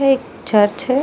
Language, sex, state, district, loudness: Hindi, female, Chhattisgarh, Bilaspur, -17 LUFS